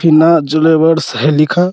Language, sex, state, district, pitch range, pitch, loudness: Hindi, male, Bihar, Araria, 150-165 Hz, 160 Hz, -11 LUFS